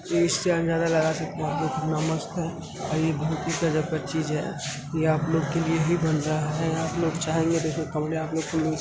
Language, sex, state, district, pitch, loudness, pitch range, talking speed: Hindi, male, Uttar Pradesh, Hamirpur, 160 Hz, -26 LUFS, 155-165 Hz, 250 wpm